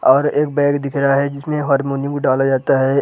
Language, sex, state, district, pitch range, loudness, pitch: Hindi, male, Bihar, Gaya, 135-145 Hz, -17 LUFS, 140 Hz